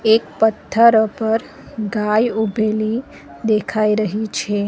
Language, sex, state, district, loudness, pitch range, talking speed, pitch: Gujarati, female, Gujarat, Valsad, -18 LUFS, 215-220 Hz, 105 wpm, 220 Hz